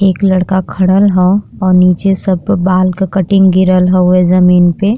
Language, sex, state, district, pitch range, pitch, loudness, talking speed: Bhojpuri, female, Uttar Pradesh, Deoria, 180-195 Hz, 185 Hz, -10 LUFS, 170 wpm